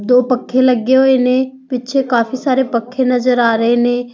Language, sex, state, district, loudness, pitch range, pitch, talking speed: Punjabi, female, Punjab, Fazilka, -14 LUFS, 245-260 Hz, 250 Hz, 205 wpm